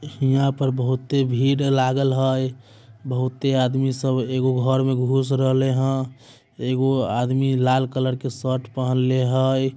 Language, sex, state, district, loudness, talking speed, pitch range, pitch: Magahi, male, Bihar, Samastipur, -21 LUFS, 140 wpm, 130-135 Hz, 130 Hz